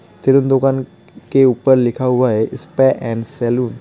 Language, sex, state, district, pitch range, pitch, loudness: Hindi, male, West Bengal, Alipurduar, 120-135 Hz, 130 Hz, -15 LUFS